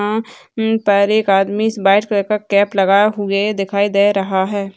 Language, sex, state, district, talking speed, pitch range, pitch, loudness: Hindi, female, Bihar, Saharsa, 190 wpm, 195-210 Hz, 205 Hz, -15 LUFS